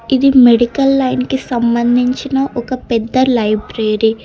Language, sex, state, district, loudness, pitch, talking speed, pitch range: Telugu, female, Telangana, Hyderabad, -13 LUFS, 245 Hz, 115 wpm, 230-265 Hz